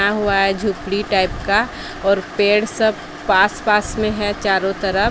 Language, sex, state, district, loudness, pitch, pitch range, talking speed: Hindi, female, Odisha, Sambalpur, -18 LUFS, 205 Hz, 195-210 Hz, 175 wpm